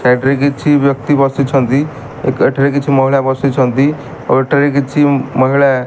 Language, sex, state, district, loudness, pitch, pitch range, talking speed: Odia, male, Odisha, Malkangiri, -13 LUFS, 140 Hz, 135-140 Hz, 155 wpm